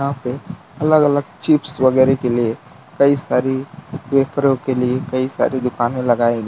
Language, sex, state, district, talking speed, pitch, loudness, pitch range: Hindi, male, Gujarat, Valsad, 175 wpm, 130 Hz, -17 LUFS, 125-145 Hz